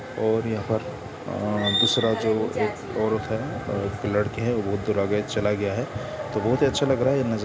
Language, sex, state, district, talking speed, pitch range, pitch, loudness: Hindi, male, Bihar, Sitamarhi, 200 wpm, 105-120 Hz, 110 Hz, -24 LUFS